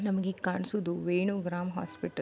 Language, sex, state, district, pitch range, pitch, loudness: Kannada, female, Karnataka, Belgaum, 175-195 Hz, 185 Hz, -32 LUFS